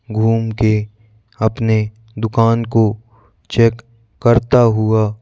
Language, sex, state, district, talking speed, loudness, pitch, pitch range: Hindi, male, Madhya Pradesh, Bhopal, 90 wpm, -16 LUFS, 110 Hz, 110-115 Hz